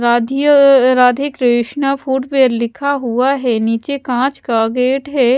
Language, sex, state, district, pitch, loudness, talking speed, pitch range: Hindi, female, Haryana, Jhajjar, 260 Hz, -14 LUFS, 145 wpm, 240-275 Hz